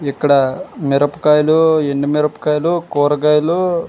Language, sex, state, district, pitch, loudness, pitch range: Telugu, male, Andhra Pradesh, Srikakulam, 150 Hz, -15 LUFS, 145-160 Hz